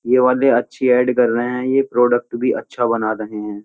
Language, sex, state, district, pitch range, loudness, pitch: Hindi, male, Uttar Pradesh, Jyotiba Phule Nagar, 115-125 Hz, -17 LUFS, 125 Hz